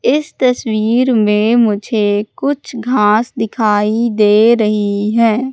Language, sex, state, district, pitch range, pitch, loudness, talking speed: Hindi, female, Madhya Pradesh, Katni, 210-245 Hz, 225 Hz, -13 LUFS, 110 wpm